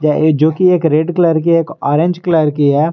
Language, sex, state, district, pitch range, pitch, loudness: Hindi, male, Jharkhand, Garhwa, 150-170 Hz, 160 Hz, -13 LUFS